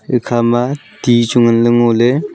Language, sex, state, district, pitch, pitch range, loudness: Wancho, male, Arunachal Pradesh, Longding, 120 Hz, 120-130 Hz, -13 LUFS